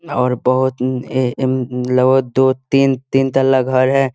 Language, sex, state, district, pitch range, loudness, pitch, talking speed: Hindi, male, Bihar, Muzaffarpur, 125-135 Hz, -16 LUFS, 130 Hz, 115 wpm